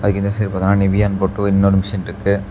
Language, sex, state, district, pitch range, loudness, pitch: Tamil, male, Tamil Nadu, Namakkal, 95-100 Hz, -17 LUFS, 100 Hz